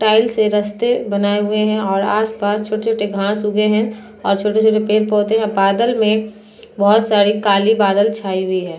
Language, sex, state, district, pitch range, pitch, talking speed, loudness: Hindi, female, Uttar Pradesh, Muzaffarnagar, 205-220 Hz, 210 Hz, 185 wpm, -16 LUFS